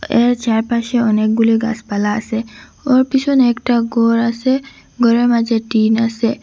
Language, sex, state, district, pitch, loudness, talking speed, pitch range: Bengali, female, Assam, Hailakandi, 235 Hz, -15 LUFS, 130 wpm, 225-245 Hz